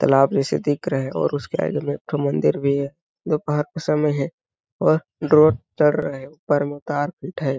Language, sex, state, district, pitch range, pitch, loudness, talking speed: Hindi, male, Chhattisgarh, Balrampur, 140-150 Hz, 145 Hz, -21 LUFS, 220 wpm